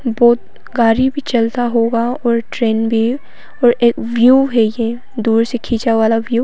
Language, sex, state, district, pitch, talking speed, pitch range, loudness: Hindi, female, Arunachal Pradesh, Papum Pare, 235 Hz, 175 wpm, 230-245 Hz, -15 LUFS